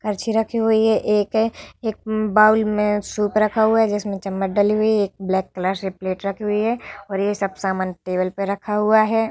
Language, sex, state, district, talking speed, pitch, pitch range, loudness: Hindi, female, Bihar, Vaishali, 210 wpm, 210 Hz, 195-220 Hz, -20 LUFS